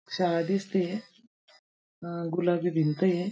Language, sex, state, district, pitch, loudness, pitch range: Marathi, female, Maharashtra, Aurangabad, 180 Hz, -28 LUFS, 170-195 Hz